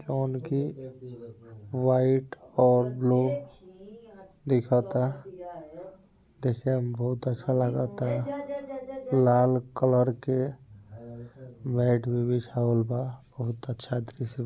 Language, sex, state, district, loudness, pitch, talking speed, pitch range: Bhojpuri, male, Bihar, Gopalganj, -27 LUFS, 125 Hz, 90 wpm, 120-135 Hz